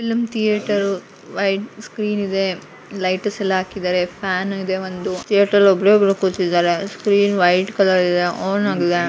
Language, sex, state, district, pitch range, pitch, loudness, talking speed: Kannada, female, Karnataka, Shimoga, 185-200 Hz, 195 Hz, -18 LUFS, 145 wpm